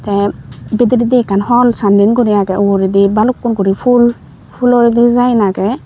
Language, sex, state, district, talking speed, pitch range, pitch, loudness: Chakma, female, Tripura, Unakoti, 145 wpm, 200-245 Hz, 230 Hz, -11 LUFS